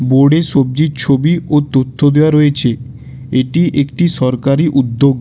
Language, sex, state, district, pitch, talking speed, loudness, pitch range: Bengali, male, West Bengal, Alipurduar, 140 Hz, 125 wpm, -12 LUFS, 130-150 Hz